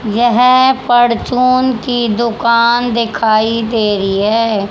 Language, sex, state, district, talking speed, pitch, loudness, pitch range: Hindi, female, Haryana, Charkhi Dadri, 100 wpm, 235 Hz, -12 LUFS, 220-245 Hz